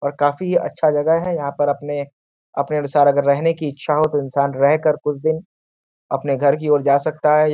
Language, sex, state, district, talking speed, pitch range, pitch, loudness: Hindi, male, Uttar Pradesh, Varanasi, 225 wpm, 140-155 Hz, 145 Hz, -18 LUFS